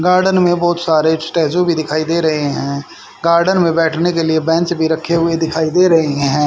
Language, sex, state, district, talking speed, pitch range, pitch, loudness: Hindi, male, Haryana, Rohtak, 215 wpm, 160-175 Hz, 165 Hz, -14 LUFS